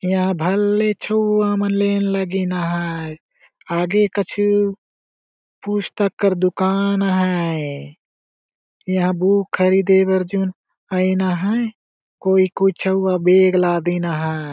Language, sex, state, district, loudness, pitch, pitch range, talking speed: Sadri, male, Chhattisgarh, Jashpur, -18 LUFS, 190 Hz, 180-200 Hz, 100 wpm